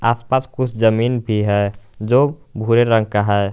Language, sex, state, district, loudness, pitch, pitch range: Hindi, male, Jharkhand, Garhwa, -17 LUFS, 115 Hz, 105-125 Hz